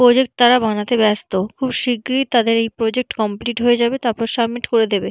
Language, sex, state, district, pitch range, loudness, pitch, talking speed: Bengali, female, West Bengal, Purulia, 220-245 Hz, -17 LUFS, 235 Hz, 190 wpm